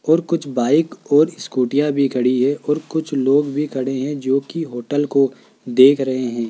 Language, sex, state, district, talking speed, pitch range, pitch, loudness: Hindi, male, Rajasthan, Jaipur, 185 wpm, 130-150 Hz, 140 Hz, -18 LUFS